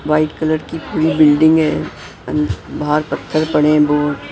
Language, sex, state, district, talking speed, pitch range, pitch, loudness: Hindi, male, Maharashtra, Mumbai Suburban, 165 wpm, 150-155 Hz, 150 Hz, -15 LUFS